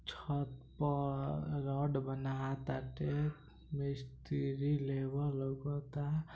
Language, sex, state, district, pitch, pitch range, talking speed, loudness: Bhojpuri, male, Bihar, East Champaran, 140 Hz, 135-145 Hz, 65 wpm, -39 LUFS